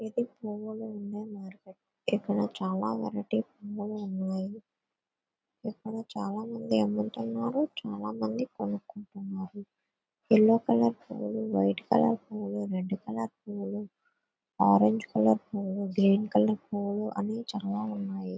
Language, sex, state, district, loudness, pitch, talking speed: Telugu, female, Andhra Pradesh, Visakhapatnam, -30 LUFS, 200 Hz, 110 wpm